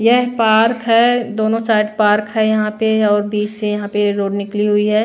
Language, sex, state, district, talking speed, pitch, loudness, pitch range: Hindi, female, Bihar, Patna, 215 wpm, 215 Hz, -15 LUFS, 210-225 Hz